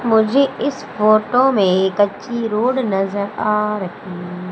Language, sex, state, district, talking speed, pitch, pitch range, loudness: Hindi, female, Madhya Pradesh, Umaria, 135 wpm, 210 Hz, 195-230 Hz, -17 LUFS